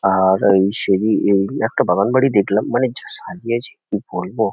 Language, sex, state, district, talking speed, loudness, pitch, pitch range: Bengali, male, West Bengal, Kolkata, 170 wpm, -17 LUFS, 100 Hz, 95-115 Hz